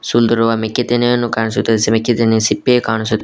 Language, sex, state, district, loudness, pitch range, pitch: Kannada, male, Karnataka, Koppal, -15 LUFS, 110-120 Hz, 115 Hz